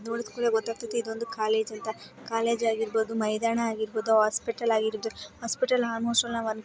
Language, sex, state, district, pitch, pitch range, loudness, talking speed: Kannada, female, Karnataka, Bijapur, 225 Hz, 220-230 Hz, -28 LUFS, 145 wpm